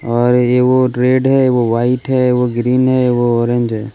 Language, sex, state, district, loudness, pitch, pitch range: Hindi, male, Jharkhand, Deoghar, -13 LUFS, 125 Hz, 120-130 Hz